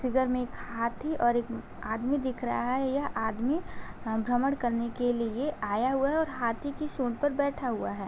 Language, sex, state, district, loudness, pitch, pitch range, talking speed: Hindi, female, Uttar Pradesh, Gorakhpur, -30 LUFS, 250 Hz, 235-280 Hz, 200 wpm